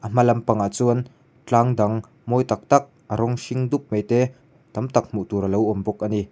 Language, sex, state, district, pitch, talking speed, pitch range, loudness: Mizo, male, Mizoram, Aizawl, 120 Hz, 235 wpm, 105-130 Hz, -22 LUFS